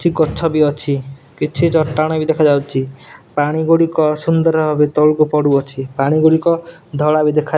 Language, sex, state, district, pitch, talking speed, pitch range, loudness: Odia, male, Odisha, Nuapada, 150 Hz, 150 wpm, 145-160 Hz, -15 LUFS